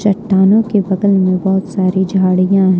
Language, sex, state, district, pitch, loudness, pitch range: Hindi, female, Jharkhand, Ranchi, 190 Hz, -13 LUFS, 185-200 Hz